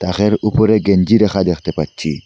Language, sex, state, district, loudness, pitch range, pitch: Bengali, male, Assam, Hailakandi, -15 LUFS, 85-105 Hz, 95 Hz